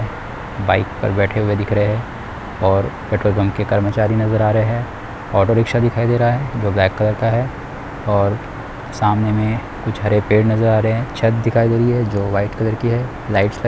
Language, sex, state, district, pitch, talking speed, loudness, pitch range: Hindi, male, Chhattisgarh, Kabirdham, 110 Hz, 225 wpm, -17 LUFS, 100-115 Hz